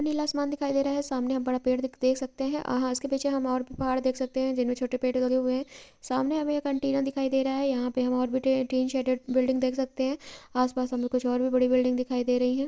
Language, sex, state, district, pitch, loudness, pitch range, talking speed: Maithili, female, Bihar, Purnia, 260 Hz, -28 LUFS, 255-275 Hz, 285 wpm